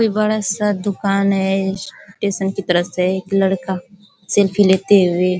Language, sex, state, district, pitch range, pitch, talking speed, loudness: Hindi, female, Uttar Pradesh, Ghazipur, 190-200 Hz, 195 Hz, 165 wpm, -17 LUFS